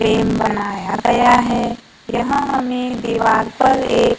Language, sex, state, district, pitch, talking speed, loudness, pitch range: Hindi, female, Maharashtra, Gondia, 240 Hz, 130 wpm, -17 LUFS, 220-250 Hz